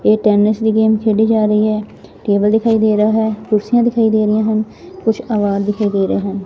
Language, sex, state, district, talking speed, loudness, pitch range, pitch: Punjabi, female, Punjab, Fazilka, 225 wpm, -15 LUFS, 210-220 Hz, 215 Hz